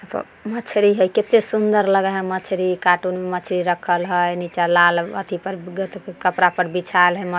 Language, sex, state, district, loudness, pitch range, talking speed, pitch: Maithili, female, Bihar, Samastipur, -19 LUFS, 180-195 Hz, 160 wpm, 185 Hz